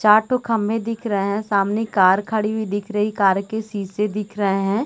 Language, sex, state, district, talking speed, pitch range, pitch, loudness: Hindi, female, Chhattisgarh, Raigarh, 235 wpm, 200-220 Hz, 210 Hz, -20 LUFS